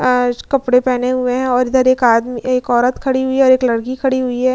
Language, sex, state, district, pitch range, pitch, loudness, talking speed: Hindi, female, Bihar, Vaishali, 250-260 Hz, 255 Hz, -15 LUFS, 250 wpm